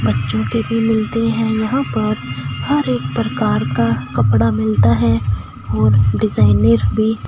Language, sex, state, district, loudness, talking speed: Hindi, female, Punjab, Fazilka, -16 LUFS, 140 wpm